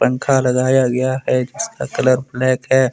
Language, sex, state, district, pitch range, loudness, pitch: Hindi, male, Jharkhand, Deoghar, 125-130 Hz, -17 LUFS, 130 Hz